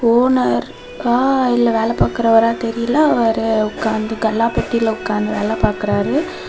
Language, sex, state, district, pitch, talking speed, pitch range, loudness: Tamil, female, Tamil Nadu, Kanyakumari, 230 Hz, 120 wpm, 220-240 Hz, -17 LUFS